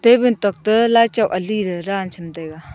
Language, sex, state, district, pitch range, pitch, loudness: Wancho, female, Arunachal Pradesh, Longding, 175-230 Hz, 200 Hz, -17 LUFS